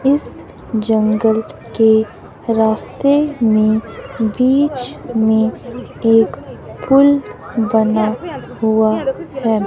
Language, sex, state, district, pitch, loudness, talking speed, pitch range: Hindi, female, Himachal Pradesh, Shimla, 225 Hz, -15 LUFS, 75 wpm, 220-265 Hz